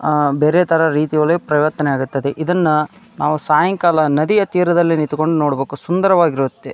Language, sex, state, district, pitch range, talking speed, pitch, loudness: Kannada, male, Karnataka, Dharwad, 150-175 Hz, 115 wpm, 155 Hz, -16 LUFS